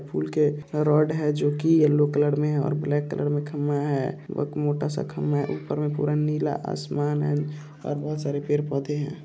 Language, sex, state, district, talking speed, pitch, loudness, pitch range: Hindi, male, Bihar, Purnia, 215 wpm, 145 Hz, -25 LUFS, 145-150 Hz